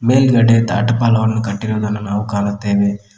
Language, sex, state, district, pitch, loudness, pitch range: Kannada, male, Karnataka, Koppal, 105 Hz, -15 LUFS, 100-115 Hz